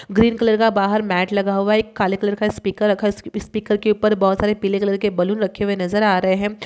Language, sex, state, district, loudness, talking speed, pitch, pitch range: Hindi, male, Uttar Pradesh, Muzaffarnagar, -19 LUFS, 280 wpm, 205 Hz, 195-215 Hz